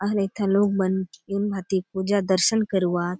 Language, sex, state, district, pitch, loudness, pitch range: Halbi, female, Chhattisgarh, Bastar, 195 Hz, -23 LUFS, 190-205 Hz